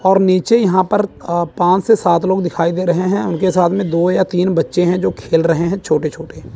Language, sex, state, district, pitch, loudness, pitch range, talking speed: Hindi, male, Chandigarh, Chandigarh, 180 Hz, -15 LUFS, 170-190 Hz, 245 wpm